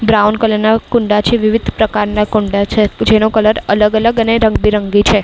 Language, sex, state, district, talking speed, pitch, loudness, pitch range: Gujarati, female, Maharashtra, Mumbai Suburban, 170 wpm, 215 Hz, -12 LUFS, 210-220 Hz